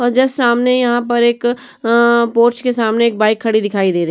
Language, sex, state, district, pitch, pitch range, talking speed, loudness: Hindi, female, Uttar Pradesh, Etah, 235 Hz, 225-240 Hz, 250 wpm, -14 LUFS